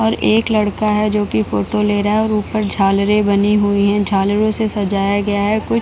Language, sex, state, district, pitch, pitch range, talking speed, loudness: Hindi, female, Bihar, Jahanabad, 205 Hz, 200-215 Hz, 235 wpm, -16 LUFS